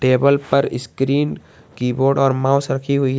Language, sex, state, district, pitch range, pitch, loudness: Hindi, male, Jharkhand, Garhwa, 130-140 Hz, 135 Hz, -18 LUFS